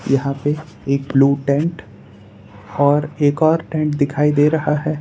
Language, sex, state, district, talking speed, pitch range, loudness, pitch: Hindi, male, Gujarat, Valsad, 155 wpm, 135-150 Hz, -17 LUFS, 145 Hz